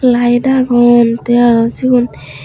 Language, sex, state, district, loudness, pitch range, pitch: Chakma, female, Tripura, Unakoti, -11 LUFS, 235-250 Hz, 240 Hz